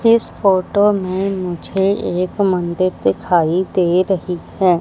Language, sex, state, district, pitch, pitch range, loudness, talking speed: Hindi, female, Madhya Pradesh, Katni, 185 Hz, 180-195 Hz, -17 LUFS, 125 wpm